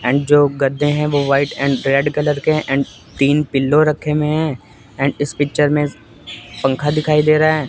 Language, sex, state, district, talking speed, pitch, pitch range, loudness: Hindi, male, Chandigarh, Chandigarh, 195 wpm, 145 Hz, 135-150 Hz, -16 LUFS